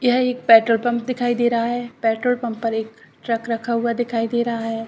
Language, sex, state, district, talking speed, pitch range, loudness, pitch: Hindi, female, Chhattisgarh, Rajnandgaon, 220 wpm, 230-240 Hz, -20 LUFS, 235 Hz